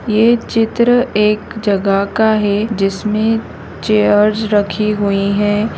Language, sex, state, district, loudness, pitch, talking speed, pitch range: Hindi, female, Bihar, Madhepura, -14 LUFS, 210 Hz, 115 wpm, 200-220 Hz